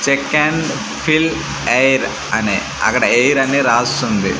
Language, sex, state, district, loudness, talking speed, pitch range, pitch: Telugu, male, Andhra Pradesh, Manyam, -15 LUFS, 135 wpm, 135-155 Hz, 150 Hz